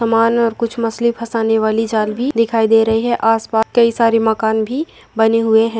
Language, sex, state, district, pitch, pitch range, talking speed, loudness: Hindi, female, Andhra Pradesh, Visakhapatnam, 225 Hz, 220-230 Hz, 185 wpm, -15 LUFS